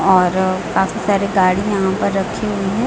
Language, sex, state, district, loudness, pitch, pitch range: Hindi, female, Chhattisgarh, Raipur, -17 LUFS, 195 Hz, 190-205 Hz